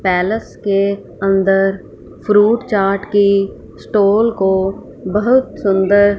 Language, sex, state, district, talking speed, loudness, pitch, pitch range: Hindi, female, Punjab, Fazilka, 95 wpm, -15 LUFS, 200 Hz, 195-210 Hz